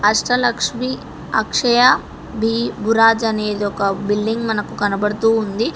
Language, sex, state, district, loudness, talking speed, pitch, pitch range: Telugu, female, Telangana, Hyderabad, -17 LUFS, 105 wpm, 225 Hz, 210-235 Hz